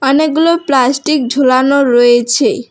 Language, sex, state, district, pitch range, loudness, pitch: Bengali, female, West Bengal, Alipurduar, 250-295 Hz, -11 LUFS, 270 Hz